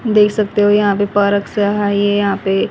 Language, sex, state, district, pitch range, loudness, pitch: Hindi, female, Haryana, Jhajjar, 200-210 Hz, -15 LUFS, 205 Hz